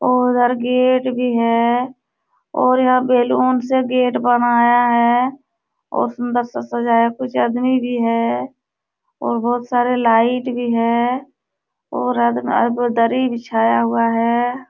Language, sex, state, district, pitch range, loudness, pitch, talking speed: Hindi, female, Uttar Pradesh, Jalaun, 235-250 Hz, -17 LUFS, 245 Hz, 135 wpm